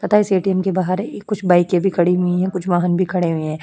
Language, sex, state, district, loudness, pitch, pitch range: Hindi, female, Uttar Pradesh, Jyotiba Phule Nagar, -18 LUFS, 185 Hz, 175-190 Hz